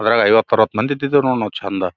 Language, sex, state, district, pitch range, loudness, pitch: Kannada, male, Karnataka, Gulbarga, 105-130 Hz, -16 LUFS, 110 Hz